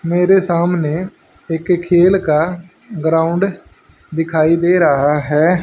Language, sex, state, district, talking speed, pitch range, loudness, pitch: Hindi, male, Haryana, Charkhi Dadri, 105 wpm, 160-180 Hz, -15 LUFS, 170 Hz